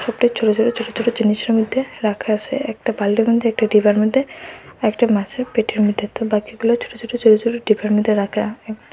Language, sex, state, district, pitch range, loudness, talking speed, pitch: Bengali, female, Assam, Hailakandi, 215-240 Hz, -18 LUFS, 190 wpm, 225 Hz